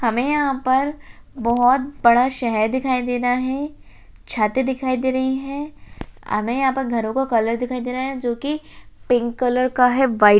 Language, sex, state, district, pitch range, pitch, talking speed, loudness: Hindi, female, Uttarakhand, Uttarkashi, 240-265 Hz, 255 Hz, 185 wpm, -20 LUFS